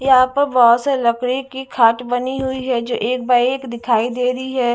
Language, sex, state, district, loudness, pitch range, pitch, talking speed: Hindi, female, Haryana, Jhajjar, -17 LUFS, 240-260 Hz, 250 Hz, 225 wpm